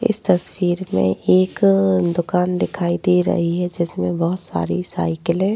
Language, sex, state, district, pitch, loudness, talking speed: Hindi, female, Uttar Pradesh, Jyotiba Phule Nagar, 175 Hz, -19 LUFS, 150 wpm